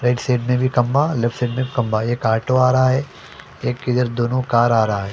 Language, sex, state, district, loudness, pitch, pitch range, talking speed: Hindi, male, Delhi, New Delhi, -19 LUFS, 125 Hz, 120-130 Hz, 245 wpm